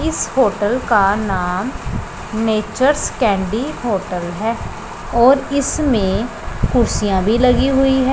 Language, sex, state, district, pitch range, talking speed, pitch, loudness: Hindi, female, Punjab, Pathankot, 200-265 Hz, 105 wpm, 225 Hz, -17 LUFS